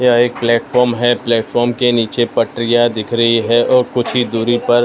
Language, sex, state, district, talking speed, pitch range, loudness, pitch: Hindi, male, Maharashtra, Mumbai Suburban, 210 wpm, 115-120 Hz, -14 LUFS, 120 Hz